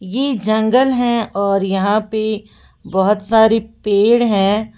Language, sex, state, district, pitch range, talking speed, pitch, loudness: Hindi, female, Uttar Pradesh, Lalitpur, 200-225 Hz, 125 wpm, 215 Hz, -15 LUFS